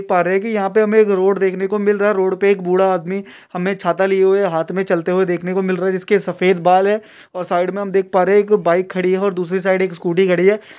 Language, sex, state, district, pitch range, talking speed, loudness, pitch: Hindi, male, Uttar Pradesh, Deoria, 185-200 Hz, 295 wpm, -16 LUFS, 190 Hz